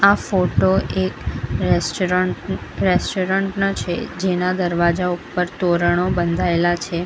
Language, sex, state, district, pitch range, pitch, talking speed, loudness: Gujarati, female, Gujarat, Valsad, 175-185 Hz, 180 Hz, 110 wpm, -20 LUFS